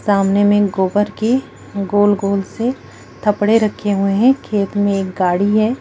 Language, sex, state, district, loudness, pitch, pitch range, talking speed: Hindi, female, Bihar, Jamui, -16 LUFS, 205 Hz, 195-215 Hz, 155 wpm